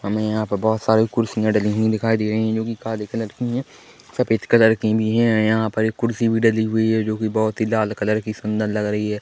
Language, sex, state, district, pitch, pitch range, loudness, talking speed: Hindi, male, Chhattisgarh, Korba, 110 Hz, 110-115 Hz, -20 LUFS, 275 wpm